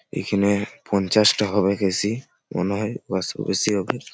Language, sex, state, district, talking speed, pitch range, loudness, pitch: Bengali, male, West Bengal, Malda, 175 wpm, 100-105 Hz, -22 LUFS, 100 Hz